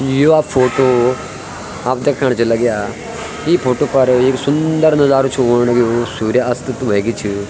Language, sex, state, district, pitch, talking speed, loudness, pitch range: Garhwali, male, Uttarakhand, Tehri Garhwal, 125 Hz, 160 wpm, -14 LUFS, 120-135 Hz